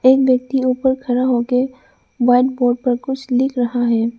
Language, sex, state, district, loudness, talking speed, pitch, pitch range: Hindi, female, Arunachal Pradesh, Lower Dibang Valley, -17 LUFS, 170 wpm, 250 Hz, 245-260 Hz